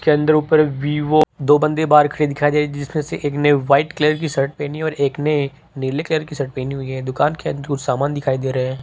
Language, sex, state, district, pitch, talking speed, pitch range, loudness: Hindi, male, Rajasthan, Jaipur, 145 Hz, 250 wpm, 140-155 Hz, -18 LUFS